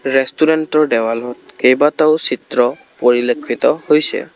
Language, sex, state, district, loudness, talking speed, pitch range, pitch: Assamese, male, Assam, Kamrup Metropolitan, -15 LUFS, 85 wpm, 125-155 Hz, 135 Hz